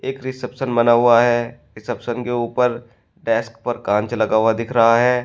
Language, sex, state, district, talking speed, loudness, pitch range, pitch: Hindi, male, Uttar Pradesh, Shamli, 170 wpm, -18 LUFS, 115-120 Hz, 120 Hz